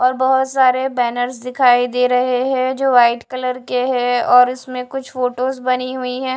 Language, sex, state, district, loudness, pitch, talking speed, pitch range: Hindi, female, Odisha, Khordha, -17 LUFS, 255 Hz, 190 wpm, 250-260 Hz